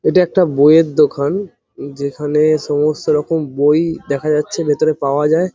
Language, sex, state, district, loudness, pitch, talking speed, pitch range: Bengali, male, West Bengal, Jhargram, -15 LUFS, 150 Hz, 140 wpm, 145-165 Hz